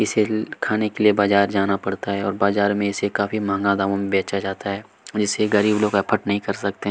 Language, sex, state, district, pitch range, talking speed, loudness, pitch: Hindi, male, Chhattisgarh, Kabirdham, 100-105 Hz, 225 wpm, -21 LUFS, 100 Hz